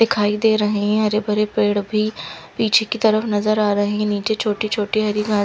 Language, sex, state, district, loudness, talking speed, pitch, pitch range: Hindi, female, Punjab, Fazilka, -19 LUFS, 220 wpm, 210 Hz, 210-215 Hz